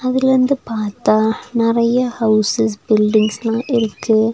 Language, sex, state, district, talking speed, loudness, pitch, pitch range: Tamil, female, Tamil Nadu, Nilgiris, 85 wpm, -16 LUFS, 225 Hz, 215-245 Hz